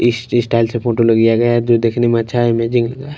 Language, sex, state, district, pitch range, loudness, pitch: Hindi, male, Punjab, Kapurthala, 115-120 Hz, -15 LUFS, 120 Hz